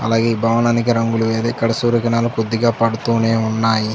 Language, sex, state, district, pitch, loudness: Telugu, male, Andhra Pradesh, Chittoor, 115 Hz, -17 LUFS